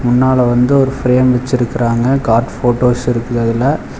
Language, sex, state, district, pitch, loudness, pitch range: Tamil, male, Tamil Nadu, Chennai, 125 Hz, -13 LUFS, 120-130 Hz